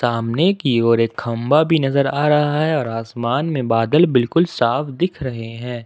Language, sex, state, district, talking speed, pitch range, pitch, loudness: Hindi, male, Jharkhand, Ranchi, 195 wpm, 115-150 Hz, 130 Hz, -18 LUFS